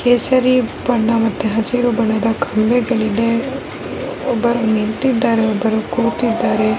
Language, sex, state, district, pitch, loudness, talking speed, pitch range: Kannada, female, Karnataka, Raichur, 230 Hz, -17 LUFS, 105 wpm, 220-245 Hz